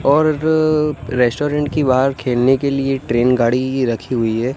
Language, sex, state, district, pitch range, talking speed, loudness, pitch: Hindi, male, Gujarat, Gandhinagar, 125-145 Hz, 155 wpm, -17 LUFS, 135 Hz